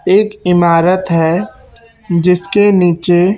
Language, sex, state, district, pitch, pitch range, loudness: Hindi, male, Chhattisgarh, Raipur, 180 Hz, 175-205 Hz, -12 LUFS